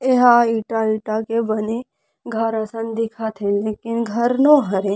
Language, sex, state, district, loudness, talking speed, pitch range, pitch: Chhattisgarhi, female, Chhattisgarh, Rajnandgaon, -19 LUFS, 155 wpm, 215-235 Hz, 225 Hz